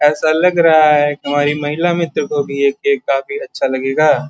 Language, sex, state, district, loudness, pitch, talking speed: Hindi, male, Uttar Pradesh, Gorakhpur, -15 LUFS, 155 Hz, 195 wpm